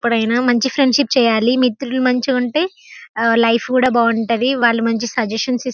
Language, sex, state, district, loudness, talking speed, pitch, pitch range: Telugu, female, Telangana, Karimnagar, -16 LUFS, 165 wpm, 245 Hz, 230-255 Hz